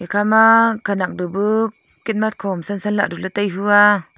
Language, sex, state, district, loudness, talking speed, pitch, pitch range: Wancho, female, Arunachal Pradesh, Longding, -17 LUFS, 200 wpm, 205 Hz, 195-220 Hz